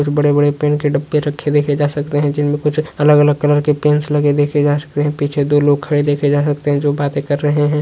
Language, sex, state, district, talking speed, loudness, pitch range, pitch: Hindi, male, Bihar, Saharsa, 245 wpm, -15 LUFS, 145-150 Hz, 145 Hz